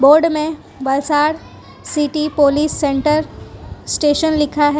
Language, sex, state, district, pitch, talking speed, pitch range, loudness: Hindi, female, Gujarat, Valsad, 300 Hz, 110 wpm, 290-305 Hz, -16 LUFS